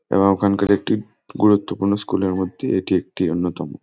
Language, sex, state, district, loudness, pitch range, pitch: Bengali, male, West Bengal, Jhargram, -20 LUFS, 90-100 Hz, 95 Hz